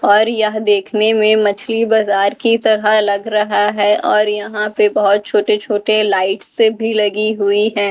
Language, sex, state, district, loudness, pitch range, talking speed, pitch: Hindi, female, Delhi, New Delhi, -14 LUFS, 205-215 Hz, 165 wpm, 210 Hz